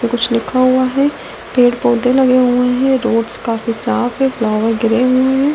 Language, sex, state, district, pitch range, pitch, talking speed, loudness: Hindi, female, Delhi, New Delhi, 230-255 Hz, 245 Hz, 185 wpm, -14 LUFS